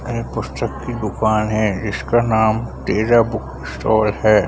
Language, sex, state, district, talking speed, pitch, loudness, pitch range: Hindi, male, Bihar, Madhepura, 145 wpm, 110 Hz, -18 LUFS, 105-110 Hz